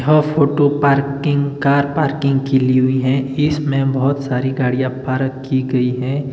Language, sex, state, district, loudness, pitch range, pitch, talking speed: Hindi, male, Himachal Pradesh, Shimla, -17 LUFS, 130-140 Hz, 135 Hz, 160 wpm